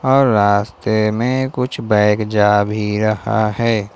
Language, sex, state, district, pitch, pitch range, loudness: Hindi, male, Jharkhand, Ranchi, 110 Hz, 105-115 Hz, -16 LUFS